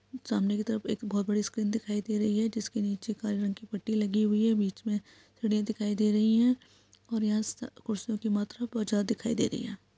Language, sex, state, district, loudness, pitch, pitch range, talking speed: Hindi, female, Bihar, Saharsa, -30 LUFS, 215 Hz, 210-225 Hz, 230 wpm